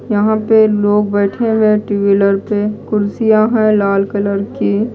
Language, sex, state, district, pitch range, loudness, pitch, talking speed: Hindi, female, Odisha, Malkangiri, 200-215 Hz, -13 LUFS, 210 Hz, 170 wpm